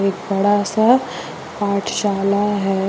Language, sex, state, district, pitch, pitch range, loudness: Hindi, female, Jharkhand, Deoghar, 200 Hz, 195-205 Hz, -18 LUFS